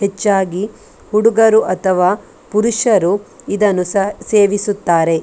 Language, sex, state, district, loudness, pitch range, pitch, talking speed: Kannada, female, Karnataka, Dakshina Kannada, -15 LUFS, 185-215 Hz, 205 Hz, 90 wpm